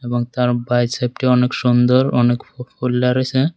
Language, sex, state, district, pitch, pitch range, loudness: Bengali, male, Tripura, West Tripura, 125 Hz, 120-130 Hz, -17 LUFS